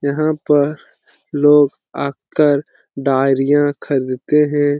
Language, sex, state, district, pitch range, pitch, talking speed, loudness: Hindi, male, Bihar, Lakhisarai, 140-150 Hz, 145 Hz, 100 wpm, -16 LUFS